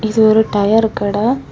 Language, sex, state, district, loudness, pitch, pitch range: Tamil, female, Tamil Nadu, Kanyakumari, -14 LUFS, 220 Hz, 210-225 Hz